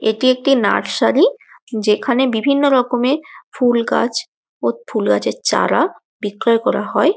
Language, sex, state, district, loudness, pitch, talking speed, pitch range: Bengali, female, West Bengal, Jalpaiguri, -17 LUFS, 250 Hz, 135 wpm, 230-280 Hz